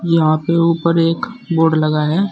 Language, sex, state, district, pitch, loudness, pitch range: Hindi, male, Uttar Pradesh, Saharanpur, 165 Hz, -15 LUFS, 155-170 Hz